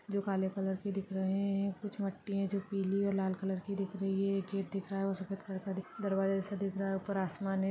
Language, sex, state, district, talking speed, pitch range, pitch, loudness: Hindi, female, Chhattisgarh, Balrampur, 280 wpm, 195-200 Hz, 195 Hz, -36 LUFS